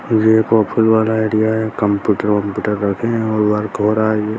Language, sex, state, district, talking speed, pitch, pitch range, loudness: Hindi, male, Bihar, Bhagalpur, 180 wpm, 110 Hz, 105-110 Hz, -16 LUFS